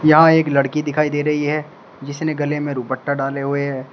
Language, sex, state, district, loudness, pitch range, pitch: Hindi, male, Uttar Pradesh, Shamli, -18 LUFS, 140-150 Hz, 145 Hz